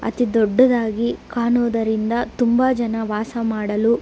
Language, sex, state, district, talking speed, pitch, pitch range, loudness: Kannada, female, Karnataka, Belgaum, 120 wpm, 230 Hz, 220-240 Hz, -19 LUFS